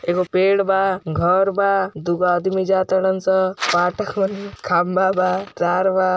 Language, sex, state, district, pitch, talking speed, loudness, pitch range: Hindi, male, Uttar Pradesh, Ghazipur, 190 Hz, 145 wpm, -19 LUFS, 180-195 Hz